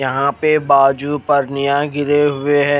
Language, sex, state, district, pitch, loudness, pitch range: Hindi, male, Odisha, Khordha, 145 Hz, -15 LUFS, 140-145 Hz